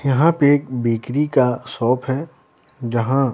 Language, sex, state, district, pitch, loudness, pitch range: Hindi, male, Bihar, Patna, 130 Hz, -19 LUFS, 125-145 Hz